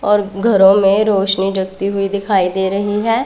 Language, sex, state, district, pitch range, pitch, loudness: Hindi, female, Punjab, Pathankot, 195-205 Hz, 200 Hz, -14 LUFS